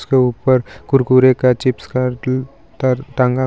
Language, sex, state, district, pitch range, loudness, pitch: Hindi, female, Jharkhand, Garhwa, 125-130 Hz, -16 LUFS, 130 Hz